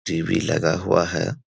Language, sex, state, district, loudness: Hindi, male, Bihar, Sitamarhi, -21 LUFS